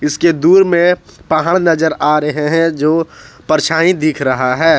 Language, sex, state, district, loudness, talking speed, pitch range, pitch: Hindi, male, Jharkhand, Ranchi, -13 LUFS, 165 wpm, 150-170 Hz, 160 Hz